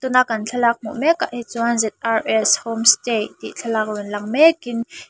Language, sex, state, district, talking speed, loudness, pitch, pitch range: Mizo, female, Mizoram, Aizawl, 200 wpm, -19 LUFS, 230 Hz, 220-245 Hz